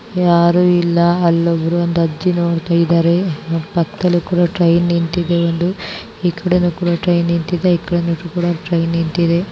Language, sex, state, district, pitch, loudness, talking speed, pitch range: Kannada, female, Karnataka, Bijapur, 170 Hz, -16 LUFS, 115 wpm, 170-175 Hz